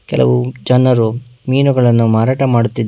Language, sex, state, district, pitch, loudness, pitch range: Kannada, male, Karnataka, Bangalore, 120 Hz, -13 LUFS, 110-130 Hz